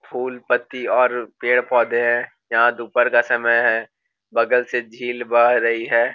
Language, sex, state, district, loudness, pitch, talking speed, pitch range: Hindi, male, Bihar, Gopalganj, -19 LUFS, 120 Hz, 155 wpm, 120-125 Hz